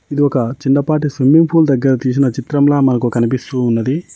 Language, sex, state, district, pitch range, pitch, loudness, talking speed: Telugu, male, Telangana, Mahabubabad, 130-145 Hz, 135 Hz, -14 LUFS, 160 wpm